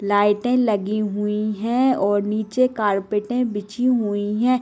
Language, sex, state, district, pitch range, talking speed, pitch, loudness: Hindi, female, Bihar, Darbhanga, 205-245 Hz, 130 wpm, 215 Hz, -21 LUFS